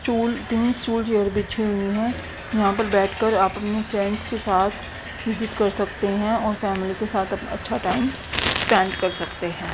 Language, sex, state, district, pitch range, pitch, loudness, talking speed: Hindi, female, Haryana, Rohtak, 195-225 Hz, 210 Hz, -23 LUFS, 155 wpm